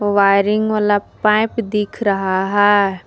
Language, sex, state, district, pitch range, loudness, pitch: Hindi, female, Jharkhand, Palamu, 200-210 Hz, -16 LUFS, 205 Hz